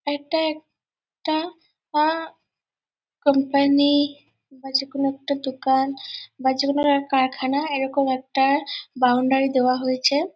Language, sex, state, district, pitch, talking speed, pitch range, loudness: Bengali, female, West Bengal, Purulia, 280 Hz, 105 wpm, 265-295 Hz, -22 LUFS